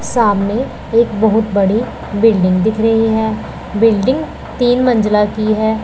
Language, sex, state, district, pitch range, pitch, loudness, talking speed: Hindi, female, Punjab, Pathankot, 210-230 Hz, 220 Hz, -14 LUFS, 135 wpm